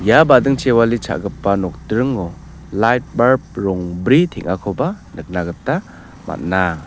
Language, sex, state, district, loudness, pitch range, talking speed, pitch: Garo, male, Meghalaya, South Garo Hills, -17 LUFS, 90-130 Hz, 95 wpm, 110 Hz